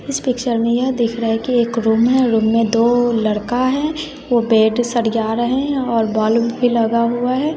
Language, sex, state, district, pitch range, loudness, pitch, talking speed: Hindi, female, Bihar, West Champaran, 225-255 Hz, -17 LUFS, 235 Hz, 205 wpm